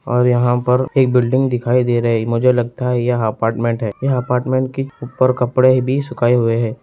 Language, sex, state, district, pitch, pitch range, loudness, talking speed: Hindi, male, Bihar, Saran, 125 Hz, 120-130 Hz, -16 LUFS, 210 wpm